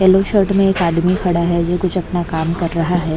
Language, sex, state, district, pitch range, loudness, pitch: Hindi, female, Maharashtra, Mumbai Suburban, 170-185 Hz, -16 LUFS, 175 Hz